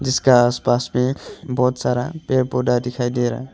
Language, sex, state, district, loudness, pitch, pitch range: Hindi, male, Arunachal Pradesh, Longding, -19 LUFS, 125 Hz, 125-130 Hz